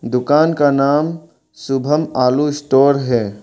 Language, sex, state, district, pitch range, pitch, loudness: Hindi, male, Arunachal Pradesh, Longding, 130-150 Hz, 140 Hz, -15 LUFS